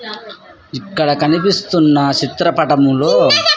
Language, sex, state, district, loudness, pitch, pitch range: Telugu, male, Andhra Pradesh, Sri Satya Sai, -13 LUFS, 160 Hz, 145-195 Hz